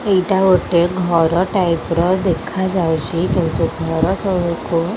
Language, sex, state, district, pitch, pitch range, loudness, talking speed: Odia, female, Odisha, Khordha, 175 Hz, 165-185 Hz, -17 LUFS, 120 wpm